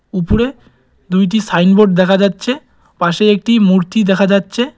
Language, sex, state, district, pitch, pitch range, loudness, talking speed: Bengali, male, West Bengal, Cooch Behar, 200 Hz, 185-220 Hz, -13 LUFS, 140 wpm